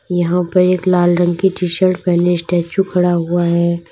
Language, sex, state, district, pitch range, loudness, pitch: Hindi, female, Uttar Pradesh, Lalitpur, 175-180 Hz, -15 LUFS, 175 Hz